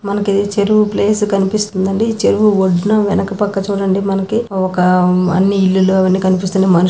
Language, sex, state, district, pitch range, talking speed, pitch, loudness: Telugu, female, Andhra Pradesh, Anantapur, 190-205 Hz, 165 wpm, 195 Hz, -14 LUFS